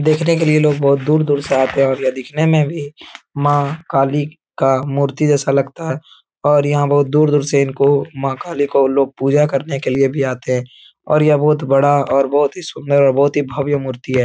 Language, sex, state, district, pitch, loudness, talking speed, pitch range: Hindi, male, Uttar Pradesh, Etah, 140 Hz, -16 LUFS, 220 wpm, 135-150 Hz